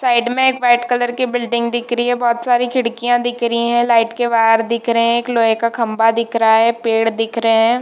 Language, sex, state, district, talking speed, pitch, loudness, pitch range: Hindi, female, Jharkhand, Jamtara, 260 wpm, 235 Hz, -15 LUFS, 230-245 Hz